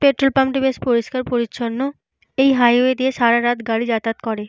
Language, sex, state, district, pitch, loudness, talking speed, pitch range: Bengali, female, Jharkhand, Jamtara, 245 Hz, -18 LUFS, 175 wpm, 235-265 Hz